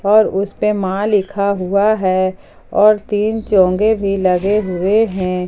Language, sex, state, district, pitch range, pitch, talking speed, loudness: Hindi, female, Jharkhand, Palamu, 185-210 Hz, 200 Hz, 155 wpm, -15 LUFS